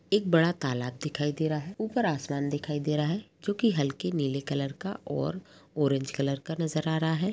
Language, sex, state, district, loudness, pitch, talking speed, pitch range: Hindi, female, Bihar, Madhepura, -29 LUFS, 155 Hz, 215 wpm, 140-175 Hz